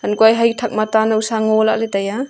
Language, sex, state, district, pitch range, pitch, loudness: Wancho, female, Arunachal Pradesh, Longding, 215-225 Hz, 220 Hz, -16 LUFS